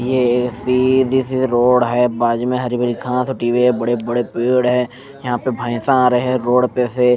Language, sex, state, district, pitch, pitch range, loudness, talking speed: Hindi, male, Punjab, Fazilka, 125 Hz, 120-125 Hz, -17 LUFS, 220 wpm